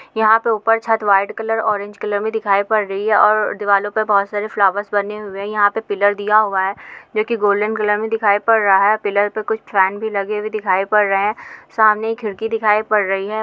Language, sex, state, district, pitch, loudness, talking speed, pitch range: Hindi, female, Goa, North and South Goa, 210 Hz, -17 LUFS, 245 wpm, 200-220 Hz